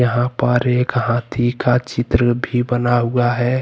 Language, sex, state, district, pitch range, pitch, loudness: Hindi, male, Jharkhand, Deoghar, 120-125 Hz, 120 Hz, -17 LUFS